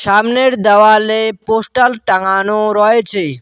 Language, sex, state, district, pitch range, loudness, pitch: Bengali, male, West Bengal, Cooch Behar, 200-225 Hz, -11 LUFS, 215 Hz